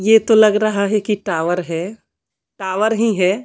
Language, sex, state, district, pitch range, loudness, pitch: Hindi, female, Bihar, Patna, 190-220 Hz, -16 LUFS, 210 Hz